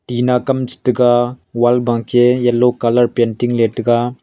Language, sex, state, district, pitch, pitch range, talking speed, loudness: Wancho, male, Arunachal Pradesh, Longding, 120 Hz, 120-125 Hz, 140 wpm, -15 LUFS